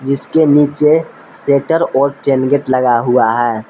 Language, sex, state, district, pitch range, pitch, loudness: Hindi, male, Jharkhand, Palamu, 125-145 Hz, 140 Hz, -13 LUFS